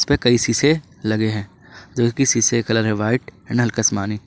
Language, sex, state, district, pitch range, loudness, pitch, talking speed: Hindi, male, Jharkhand, Ranchi, 110-125 Hz, -19 LUFS, 115 Hz, 195 wpm